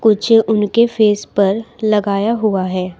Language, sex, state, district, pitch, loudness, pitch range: Hindi, female, Uttar Pradesh, Shamli, 210 Hz, -15 LUFS, 200-225 Hz